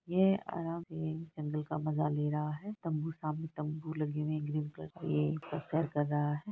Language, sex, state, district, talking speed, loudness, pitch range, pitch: Hindi, female, Bihar, Araria, 200 wpm, -36 LUFS, 150-160 Hz, 155 Hz